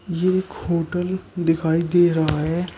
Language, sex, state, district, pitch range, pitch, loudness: Hindi, male, Uttar Pradesh, Shamli, 165-180 Hz, 170 Hz, -21 LUFS